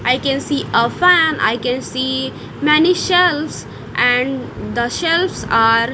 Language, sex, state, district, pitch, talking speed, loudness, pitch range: English, female, Punjab, Kapurthala, 265 Hz, 140 wpm, -16 LUFS, 245-325 Hz